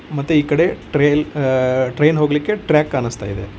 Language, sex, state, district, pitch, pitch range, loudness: Kannada, male, Karnataka, Koppal, 145 Hz, 130-150 Hz, -17 LUFS